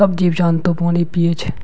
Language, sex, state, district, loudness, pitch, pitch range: Maithili, male, Bihar, Madhepura, -17 LUFS, 170 Hz, 170-175 Hz